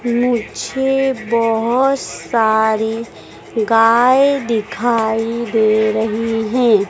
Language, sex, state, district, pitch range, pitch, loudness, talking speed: Hindi, female, Madhya Pradesh, Dhar, 220-245 Hz, 230 Hz, -16 LUFS, 70 wpm